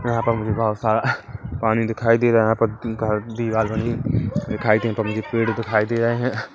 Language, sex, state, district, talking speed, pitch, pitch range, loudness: Hindi, male, Chhattisgarh, Kabirdham, 230 wpm, 115 Hz, 110-115 Hz, -21 LUFS